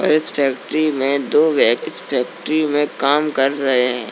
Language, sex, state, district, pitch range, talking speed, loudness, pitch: Hindi, male, Uttar Pradesh, Jalaun, 135-155 Hz, 175 wpm, -18 LUFS, 140 Hz